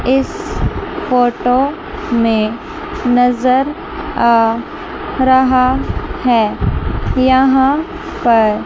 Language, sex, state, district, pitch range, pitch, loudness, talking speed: Hindi, female, Chandigarh, Chandigarh, 245-315 Hz, 260 Hz, -14 LUFS, 60 wpm